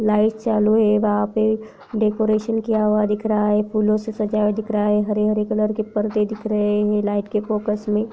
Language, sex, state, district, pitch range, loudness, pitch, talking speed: Hindi, female, Chhattisgarh, Kabirdham, 210-220 Hz, -20 LUFS, 215 Hz, 205 wpm